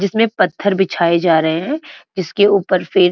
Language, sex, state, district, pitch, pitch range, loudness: Hindi, female, Uttarakhand, Uttarkashi, 190 Hz, 170-205 Hz, -16 LUFS